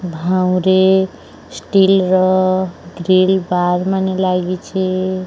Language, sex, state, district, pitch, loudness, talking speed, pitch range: Odia, male, Odisha, Sambalpur, 185 Hz, -15 LUFS, 80 wpm, 185-190 Hz